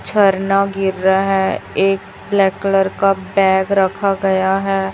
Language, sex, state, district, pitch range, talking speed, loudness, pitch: Hindi, female, Chhattisgarh, Raipur, 190-195 Hz, 145 wpm, -16 LUFS, 195 Hz